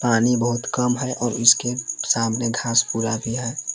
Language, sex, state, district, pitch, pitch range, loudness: Hindi, male, Jharkhand, Palamu, 120 Hz, 115-125 Hz, -20 LUFS